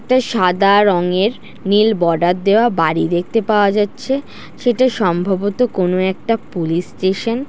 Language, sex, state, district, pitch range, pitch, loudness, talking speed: Bengali, female, West Bengal, Jhargram, 180-230 Hz, 200 Hz, -16 LUFS, 135 wpm